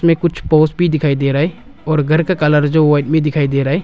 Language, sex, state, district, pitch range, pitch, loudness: Hindi, male, Arunachal Pradesh, Longding, 145-165 Hz, 155 Hz, -14 LUFS